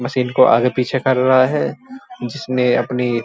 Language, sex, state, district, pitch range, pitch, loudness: Hindi, male, Uttar Pradesh, Muzaffarnagar, 125-130 Hz, 125 Hz, -16 LUFS